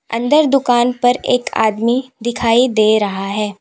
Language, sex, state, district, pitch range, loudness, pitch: Hindi, female, Uttar Pradesh, Lalitpur, 215-250 Hz, -15 LUFS, 240 Hz